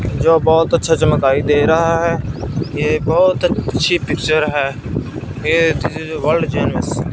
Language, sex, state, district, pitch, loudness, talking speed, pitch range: Hindi, male, Punjab, Fazilka, 155 Hz, -16 LUFS, 150 wpm, 140-165 Hz